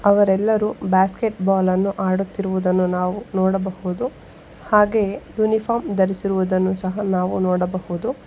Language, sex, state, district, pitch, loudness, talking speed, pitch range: Kannada, female, Karnataka, Bangalore, 190 Hz, -20 LUFS, 85 wpm, 185-210 Hz